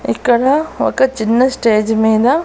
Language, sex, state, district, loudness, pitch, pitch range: Telugu, female, Andhra Pradesh, Annamaya, -14 LUFS, 240 Hz, 220-265 Hz